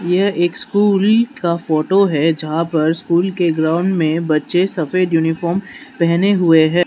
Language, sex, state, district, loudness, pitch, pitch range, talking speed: Hindi, male, Manipur, Imphal West, -16 LUFS, 170 Hz, 160-185 Hz, 155 wpm